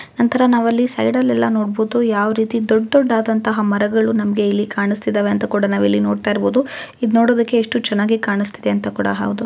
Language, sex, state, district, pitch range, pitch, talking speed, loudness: Kannada, female, Karnataka, Gulbarga, 205-230 Hz, 215 Hz, 160 wpm, -17 LUFS